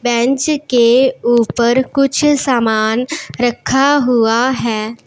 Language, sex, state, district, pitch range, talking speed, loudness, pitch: Hindi, male, Punjab, Pathankot, 235-270 Hz, 95 wpm, -14 LUFS, 245 Hz